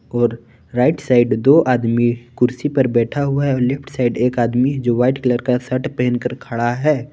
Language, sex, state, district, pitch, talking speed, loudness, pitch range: Hindi, male, Jharkhand, Palamu, 125 Hz, 195 wpm, -17 LUFS, 120-135 Hz